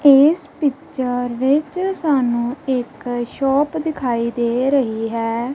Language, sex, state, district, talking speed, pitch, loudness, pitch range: Punjabi, female, Punjab, Kapurthala, 110 wpm, 265 Hz, -19 LUFS, 240-290 Hz